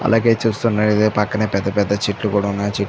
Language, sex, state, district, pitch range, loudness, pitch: Telugu, male, Andhra Pradesh, Chittoor, 100-110 Hz, -18 LUFS, 105 Hz